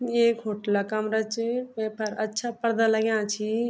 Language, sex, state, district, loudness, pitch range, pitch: Garhwali, female, Uttarakhand, Tehri Garhwal, -26 LUFS, 215-230 Hz, 220 Hz